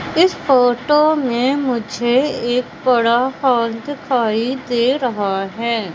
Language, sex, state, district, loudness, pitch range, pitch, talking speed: Hindi, female, Madhya Pradesh, Katni, -17 LUFS, 235-270 Hz, 245 Hz, 110 wpm